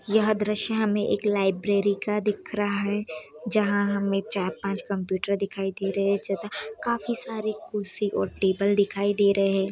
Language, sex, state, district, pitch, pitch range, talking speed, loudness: Hindi, female, Bihar, Sitamarhi, 200 Hz, 195-210 Hz, 165 wpm, -26 LUFS